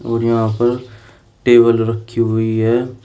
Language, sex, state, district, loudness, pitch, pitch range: Hindi, male, Uttar Pradesh, Shamli, -15 LUFS, 115 Hz, 115-120 Hz